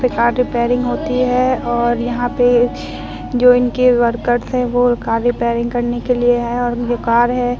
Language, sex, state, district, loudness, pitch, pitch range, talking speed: Hindi, female, Bihar, Vaishali, -16 LUFS, 245 Hz, 240-245 Hz, 190 wpm